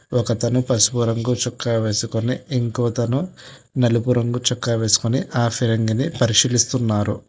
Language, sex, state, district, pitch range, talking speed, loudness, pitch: Telugu, male, Telangana, Hyderabad, 115-125 Hz, 105 wpm, -20 LUFS, 120 Hz